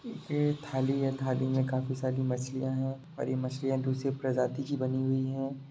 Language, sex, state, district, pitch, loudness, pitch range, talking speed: Hindi, male, Bihar, Sitamarhi, 130 Hz, -32 LUFS, 130-135 Hz, 190 wpm